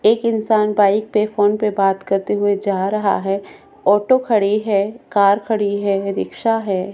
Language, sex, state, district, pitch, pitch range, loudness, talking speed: Hindi, female, Goa, North and South Goa, 205 Hz, 200-215 Hz, -18 LUFS, 175 wpm